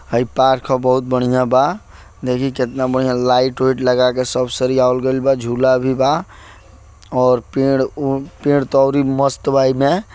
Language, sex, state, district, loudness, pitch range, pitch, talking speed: Bhojpuri, male, Bihar, Gopalganj, -16 LUFS, 125-135 Hz, 130 Hz, 190 wpm